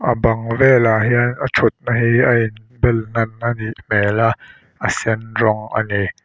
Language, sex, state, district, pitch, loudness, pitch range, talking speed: Mizo, male, Mizoram, Aizawl, 115 Hz, -17 LUFS, 110-120 Hz, 165 wpm